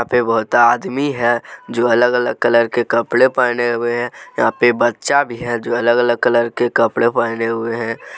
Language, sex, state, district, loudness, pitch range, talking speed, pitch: Hindi, male, Jharkhand, Deoghar, -16 LUFS, 115-120 Hz, 200 wpm, 120 Hz